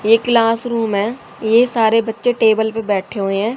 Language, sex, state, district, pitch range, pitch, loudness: Hindi, female, Haryana, Charkhi Dadri, 215-235 Hz, 225 Hz, -16 LUFS